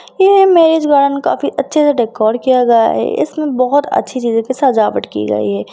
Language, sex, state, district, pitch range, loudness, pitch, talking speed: Hindi, female, Bihar, Lakhisarai, 225-295 Hz, -13 LUFS, 260 Hz, 200 wpm